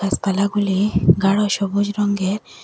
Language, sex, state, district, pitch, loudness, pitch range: Bengali, female, Assam, Hailakandi, 200 Hz, -19 LUFS, 195-205 Hz